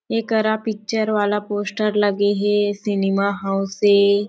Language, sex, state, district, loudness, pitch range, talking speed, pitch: Chhattisgarhi, female, Chhattisgarh, Sarguja, -20 LUFS, 200-215 Hz, 125 wpm, 205 Hz